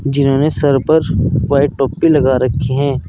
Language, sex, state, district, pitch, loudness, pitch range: Hindi, male, Uttar Pradesh, Saharanpur, 140 Hz, -14 LUFS, 130-145 Hz